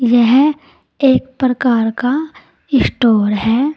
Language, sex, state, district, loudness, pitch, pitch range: Hindi, female, Uttar Pradesh, Saharanpur, -14 LUFS, 255 Hz, 235-275 Hz